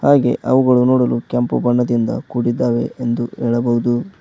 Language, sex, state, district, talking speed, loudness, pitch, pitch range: Kannada, male, Karnataka, Koppal, 115 wpm, -17 LUFS, 120 Hz, 120-125 Hz